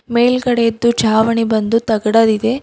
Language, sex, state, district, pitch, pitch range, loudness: Kannada, female, Karnataka, Bidar, 230 Hz, 220-235 Hz, -14 LUFS